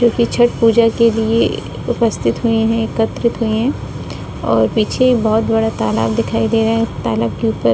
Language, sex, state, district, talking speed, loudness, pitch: Hindi, female, Uttar Pradesh, Budaun, 195 wpm, -15 LUFS, 225 Hz